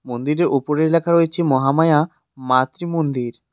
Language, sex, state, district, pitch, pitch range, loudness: Bengali, male, West Bengal, Cooch Behar, 150 Hz, 130-165 Hz, -18 LUFS